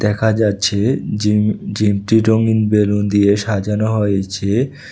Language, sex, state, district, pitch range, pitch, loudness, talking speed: Bengali, male, Tripura, West Tripura, 100-110 Hz, 105 Hz, -16 LUFS, 110 wpm